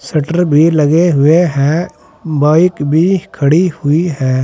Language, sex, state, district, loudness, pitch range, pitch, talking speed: Hindi, male, Uttar Pradesh, Saharanpur, -12 LUFS, 145-170 Hz, 160 Hz, 135 wpm